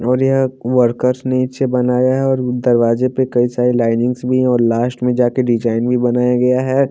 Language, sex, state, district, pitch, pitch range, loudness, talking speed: Hindi, male, Haryana, Jhajjar, 125 Hz, 120-130 Hz, -15 LUFS, 215 wpm